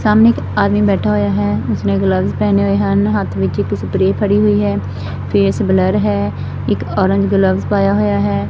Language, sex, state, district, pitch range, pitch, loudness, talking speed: Punjabi, female, Punjab, Fazilka, 100-105 Hz, 100 Hz, -15 LUFS, 190 wpm